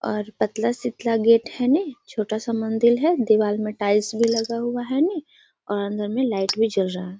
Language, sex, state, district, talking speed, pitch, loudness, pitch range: Hindi, female, Bihar, Gaya, 215 wpm, 225 Hz, -22 LUFS, 210-245 Hz